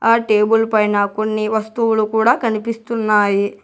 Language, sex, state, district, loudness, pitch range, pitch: Telugu, male, Telangana, Hyderabad, -16 LUFS, 210-230 Hz, 220 Hz